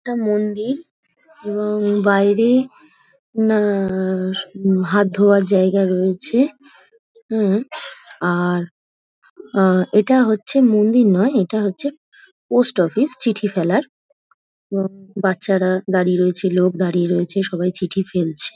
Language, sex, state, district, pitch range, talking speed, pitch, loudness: Bengali, female, West Bengal, Paschim Medinipur, 185-245 Hz, 105 wpm, 205 Hz, -18 LUFS